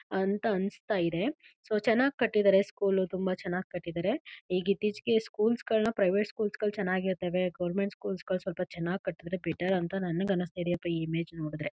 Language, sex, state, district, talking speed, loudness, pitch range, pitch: Kannada, female, Karnataka, Mysore, 165 wpm, -31 LUFS, 180-210 Hz, 190 Hz